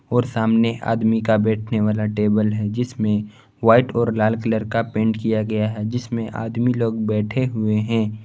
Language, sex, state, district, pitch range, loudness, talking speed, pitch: Hindi, male, Jharkhand, Garhwa, 110-115 Hz, -20 LUFS, 175 wpm, 110 Hz